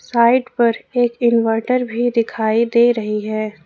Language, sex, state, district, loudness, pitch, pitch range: Hindi, female, Jharkhand, Ranchi, -17 LUFS, 235 Hz, 220-240 Hz